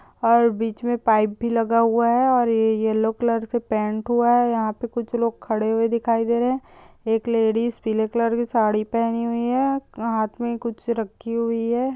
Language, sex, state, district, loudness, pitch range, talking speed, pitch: Hindi, female, Bihar, Bhagalpur, -22 LUFS, 220-240 Hz, 200 wpm, 230 Hz